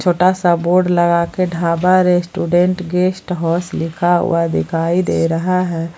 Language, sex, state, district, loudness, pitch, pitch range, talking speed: Hindi, female, Jharkhand, Palamu, -16 LUFS, 175 Hz, 170-180 Hz, 140 wpm